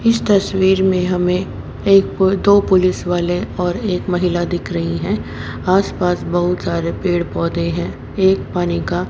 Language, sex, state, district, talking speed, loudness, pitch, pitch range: Hindi, male, Haryana, Jhajjar, 160 wpm, -17 LUFS, 180 Hz, 175-190 Hz